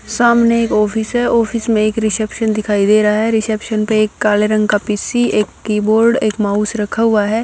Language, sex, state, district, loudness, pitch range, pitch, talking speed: Hindi, female, Bihar, Katihar, -15 LUFS, 210-230 Hz, 215 Hz, 210 wpm